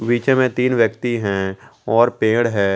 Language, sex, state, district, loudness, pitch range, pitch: Hindi, male, Jharkhand, Garhwa, -18 LUFS, 105-125 Hz, 115 Hz